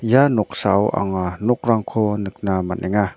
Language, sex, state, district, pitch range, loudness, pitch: Garo, male, Meghalaya, North Garo Hills, 95-115 Hz, -20 LUFS, 105 Hz